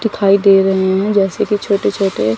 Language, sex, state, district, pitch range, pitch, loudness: Hindi, female, Chandigarh, Chandigarh, 190-205 Hz, 195 Hz, -14 LUFS